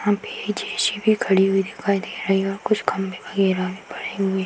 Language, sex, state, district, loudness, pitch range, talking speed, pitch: Hindi, female, Uttar Pradesh, Hamirpur, -22 LUFS, 190-210 Hz, 240 wpm, 195 Hz